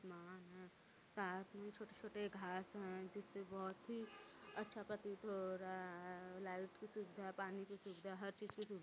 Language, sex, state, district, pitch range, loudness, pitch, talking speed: Hindi, female, Uttar Pradesh, Varanasi, 185-205 Hz, -51 LUFS, 195 Hz, 170 wpm